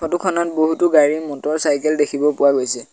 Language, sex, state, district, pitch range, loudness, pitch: Assamese, male, Assam, Sonitpur, 145-160 Hz, -17 LUFS, 150 Hz